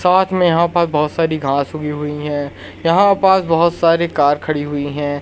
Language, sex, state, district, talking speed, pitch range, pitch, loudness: Hindi, male, Madhya Pradesh, Umaria, 205 wpm, 145-170 Hz, 155 Hz, -16 LUFS